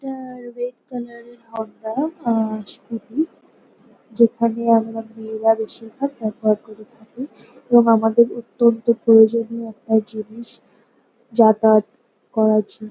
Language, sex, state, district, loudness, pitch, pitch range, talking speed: Bengali, female, West Bengal, North 24 Parganas, -19 LUFS, 230 Hz, 220-240 Hz, 110 wpm